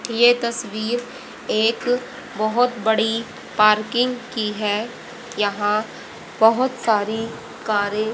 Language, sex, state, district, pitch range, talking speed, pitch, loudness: Hindi, female, Haryana, Rohtak, 215-245 Hz, 95 wpm, 225 Hz, -21 LUFS